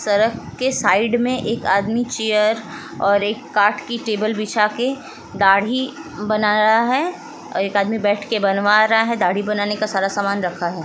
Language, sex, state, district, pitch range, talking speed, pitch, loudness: Hindi, female, Bihar, Lakhisarai, 200-235 Hz, 180 wpm, 215 Hz, -18 LUFS